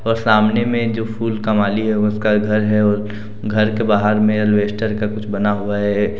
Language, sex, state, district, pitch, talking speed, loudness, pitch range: Hindi, male, Jharkhand, Deoghar, 105 Hz, 205 wpm, -17 LUFS, 105-110 Hz